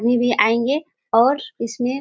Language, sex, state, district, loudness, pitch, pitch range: Hindi, female, Bihar, Kishanganj, -19 LUFS, 245 Hz, 235-270 Hz